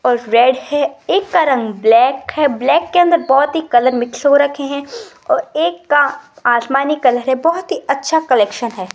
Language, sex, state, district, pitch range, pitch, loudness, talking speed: Hindi, female, Rajasthan, Jaipur, 245-310 Hz, 275 Hz, -14 LUFS, 200 wpm